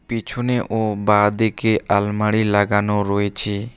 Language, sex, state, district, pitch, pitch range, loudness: Bengali, male, West Bengal, Alipurduar, 105 Hz, 100-110 Hz, -18 LUFS